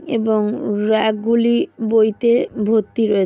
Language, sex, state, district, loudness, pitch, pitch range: Bengali, female, West Bengal, Jalpaiguri, -17 LUFS, 220 Hz, 215-235 Hz